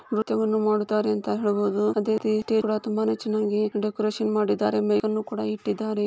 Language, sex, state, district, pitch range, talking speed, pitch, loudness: Kannada, female, Karnataka, Chamarajanagar, 205-215 Hz, 150 wpm, 215 Hz, -25 LUFS